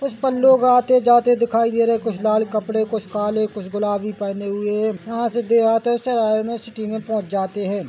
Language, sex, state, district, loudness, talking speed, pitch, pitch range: Hindi, male, Chhattisgarh, Bilaspur, -19 LUFS, 215 wpm, 220 Hz, 210-235 Hz